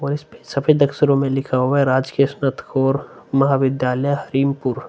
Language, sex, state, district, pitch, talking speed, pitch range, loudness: Hindi, male, Uttar Pradesh, Hamirpur, 135 Hz, 160 wpm, 135-140 Hz, -19 LUFS